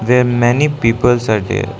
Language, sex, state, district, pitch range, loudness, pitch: English, male, Arunachal Pradesh, Lower Dibang Valley, 115-125 Hz, -14 LUFS, 120 Hz